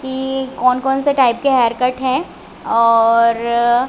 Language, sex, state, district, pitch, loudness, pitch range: Hindi, female, Chhattisgarh, Raigarh, 250 Hz, -15 LUFS, 235-265 Hz